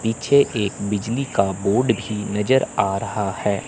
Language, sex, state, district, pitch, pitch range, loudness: Hindi, male, Chandigarh, Chandigarh, 105 Hz, 100-115 Hz, -21 LUFS